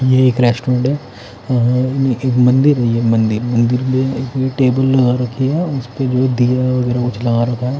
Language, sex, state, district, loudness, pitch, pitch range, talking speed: Hindi, male, Odisha, Khordha, -15 LUFS, 125 Hz, 120-130 Hz, 215 wpm